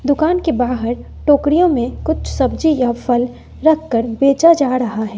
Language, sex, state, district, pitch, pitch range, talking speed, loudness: Hindi, female, Bihar, West Champaran, 275 Hz, 245-315 Hz, 175 wpm, -16 LUFS